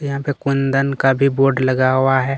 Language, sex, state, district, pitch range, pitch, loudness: Hindi, male, Chhattisgarh, Kabirdham, 135-140 Hz, 135 Hz, -17 LUFS